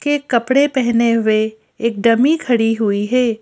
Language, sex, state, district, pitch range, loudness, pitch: Hindi, female, Madhya Pradesh, Bhopal, 225-260 Hz, -16 LUFS, 235 Hz